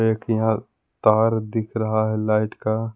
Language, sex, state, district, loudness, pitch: Hindi, male, Jharkhand, Palamu, -22 LUFS, 110 Hz